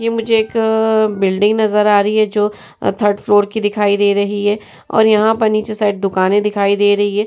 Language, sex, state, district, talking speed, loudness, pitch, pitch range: Hindi, female, Uttar Pradesh, Jyotiba Phule Nagar, 205 wpm, -14 LUFS, 210 Hz, 205-220 Hz